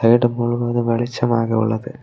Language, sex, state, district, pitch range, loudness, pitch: Tamil, male, Tamil Nadu, Kanyakumari, 115-120 Hz, -19 LUFS, 120 Hz